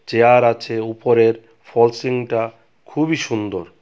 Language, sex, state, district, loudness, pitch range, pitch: Bengali, male, Tripura, West Tripura, -18 LUFS, 115-120 Hz, 115 Hz